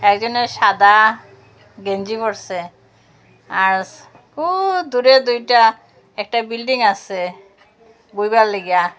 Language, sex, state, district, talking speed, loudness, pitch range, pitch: Bengali, female, Assam, Hailakandi, 85 wpm, -16 LUFS, 195-235 Hz, 215 Hz